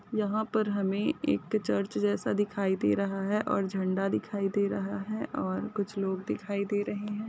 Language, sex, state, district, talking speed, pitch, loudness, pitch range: Hindi, female, Maharashtra, Solapur, 190 wpm, 200 Hz, -30 LUFS, 190-210 Hz